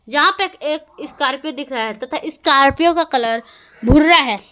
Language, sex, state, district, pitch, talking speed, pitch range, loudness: Hindi, female, Jharkhand, Garhwa, 290 Hz, 170 wpm, 260-315 Hz, -16 LUFS